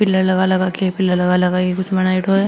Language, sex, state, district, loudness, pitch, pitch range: Marwari, female, Rajasthan, Nagaur, -17 LUFS, 185 Hz, 180-190 Hz